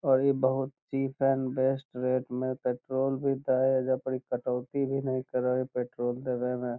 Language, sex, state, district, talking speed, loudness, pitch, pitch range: Magahi, male, Bihar, Lakhisarai, 210 wpm, -30 LUFS, 130 Hz, 125-135 Hz